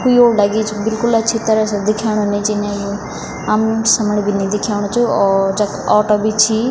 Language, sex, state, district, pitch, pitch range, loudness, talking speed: Garhwali, female, Uttarakhand, Tehri Garhwal, 215 Hz, 205-220 Hz, -15 LUFS, 195 wpm